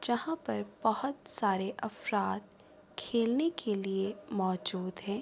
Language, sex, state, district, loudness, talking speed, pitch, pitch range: Urdu, female, Andhra Pradesh, Anantapur, -34 LUFS, 115 wpm, 205 Hz, 190-240 Hz